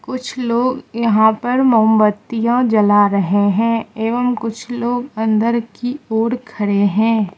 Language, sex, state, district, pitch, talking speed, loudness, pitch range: Hindi, female, Mizoram, Aizawl, 225 Hz, 130 wpm, -16 LUFS, 215-245 Hz